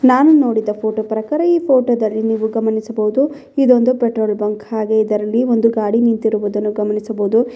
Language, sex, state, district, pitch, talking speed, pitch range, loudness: Kannada, female, Karnataka, Bellary, 220 Hz, 135 wpm, 215-245 Hz, -16 LUFS